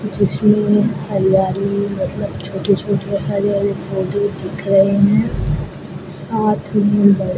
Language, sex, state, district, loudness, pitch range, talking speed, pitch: Hindi, female, Rajasthan, Bikaner, -17 LUFS, 190-205 Hz, 105 wpm, 200 Hz